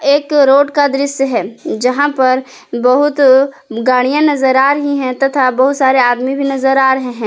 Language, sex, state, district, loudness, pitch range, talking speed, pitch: Hindi, female, Jharkhand, Palamu, -12 LUFS, 255-280 Hz, 180 wpm, 270 Hz